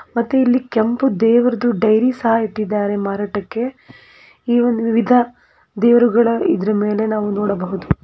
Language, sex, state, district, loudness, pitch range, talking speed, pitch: Kannada, female, Karnataka, Gulbarga, -17 LUFS, 210-240 Hz, 110 wpm, 230 Hz